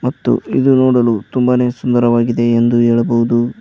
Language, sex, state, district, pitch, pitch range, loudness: Kannada, male, Karnataka, Koppal, 120 Hz, 120-125 Hz, -13 LUFS